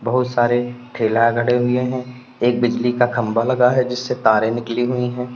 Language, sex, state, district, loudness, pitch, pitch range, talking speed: Hindi, male, Uttar Pradesh, Lalitpur, -18 LUFS, 120 Hz, 120-125 Hz, 190 wpm